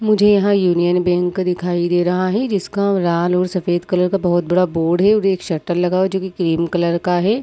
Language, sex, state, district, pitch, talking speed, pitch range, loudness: Hindi, female, Chhattisgarh, Bilaspur, 180 Hz, 235 wpm, 175-190 Hz, -17 LUFS